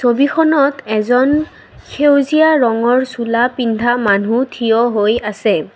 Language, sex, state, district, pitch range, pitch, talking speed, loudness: Assamese, female, Assam, Kamrup Metropolitan, 225-280 Hz, 245 Hz, 105 wpm, -14 LUFS